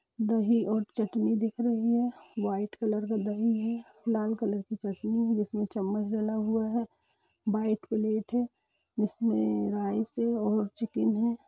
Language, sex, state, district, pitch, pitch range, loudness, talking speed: Hindi, female, Jharkhand, Jamtara, 220 Hz, 210-230 Hz, -30 LUFS, 155 wpm